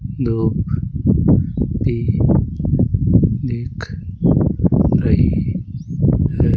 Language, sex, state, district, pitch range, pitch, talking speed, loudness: Hindi, male, Rajasthan, Jaipur, 95-120 Hz, 115 Hz, 45 wpm, -17 LUFS